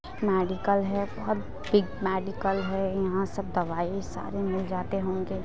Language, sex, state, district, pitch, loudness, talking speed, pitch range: Hindi, female, Bihar, Muzaffarpur, 190 Hz, -29 LUFS, 145 wpm, 185-195 Hz